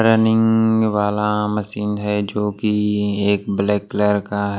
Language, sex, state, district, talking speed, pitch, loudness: Hindi, male, Maharashtra, Washim, 130 wpm, 105 Hz, -19 LUFS